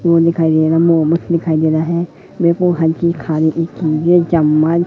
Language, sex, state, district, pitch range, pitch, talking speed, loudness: Hindi, male, Madhya Pradesh, Katni, 160-170 Hz, 165 Hz, 145 wpm, -14 LUFS